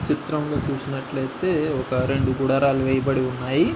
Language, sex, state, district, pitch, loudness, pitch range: Telugu, male, Andhra Pradesh, Anantapur, 135 Hz, -23 LUFS, 130-145 Hz